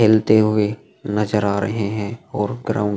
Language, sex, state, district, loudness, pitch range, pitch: Hindi, male, Uttar Pradesh, Jalaun, -20 LUFS, 105-110 Hz, 105 Hz